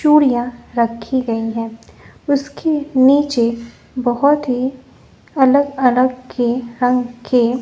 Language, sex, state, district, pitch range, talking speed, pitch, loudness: Hindi, female, Bihar, West Champaran, 240-275 Hz, 100 wpm, 250 Hz, -17 LUFS